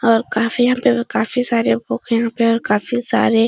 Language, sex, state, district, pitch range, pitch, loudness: Hindi, female, Bihar, Supaul, 225-245 Hz, 230 Hz, -17 LUFS